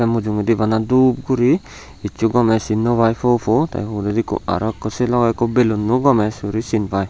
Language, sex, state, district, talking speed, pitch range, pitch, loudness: Chakma, male, Tripura, Unakoti, 195 wpm, 110-120 Hz, 115 Hz, -18 LUFS